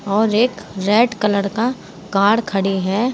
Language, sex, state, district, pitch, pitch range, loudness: Hindi, female, Uttar Pradesh, Saharanpur, 205 Hz, 195-230 Hz, -18 LUFS